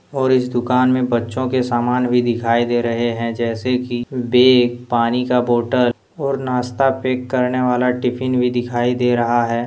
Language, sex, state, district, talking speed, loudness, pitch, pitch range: Hindi, male, Jharkhand, Deoghar, 180 wpm, -18 LUFS, 125 Hz, 120-125 Hz